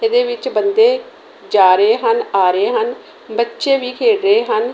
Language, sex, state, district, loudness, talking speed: Punjabi, female, Punjab, Kapurthala, -15 LUFS, 175 wpm